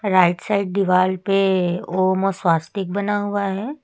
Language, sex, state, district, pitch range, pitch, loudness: Hindi, female, Uttar Pradesh, Lucknow, 185-200 Hz, 195 Hz, -20 LUFS